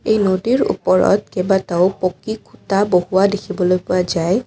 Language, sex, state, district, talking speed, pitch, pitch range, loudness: Assamese, female, Assam, Kamrup Metropolitan, 135 wpm, 190 Hz, 180-200 Hz, -17 LUFS